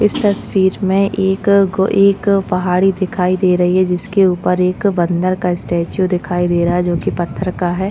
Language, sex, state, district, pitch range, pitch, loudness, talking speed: Hindi, female, Maharashtra, Chandrapur, 180-195 Hz, 185 Hz, -15 LUFS, 195 wpm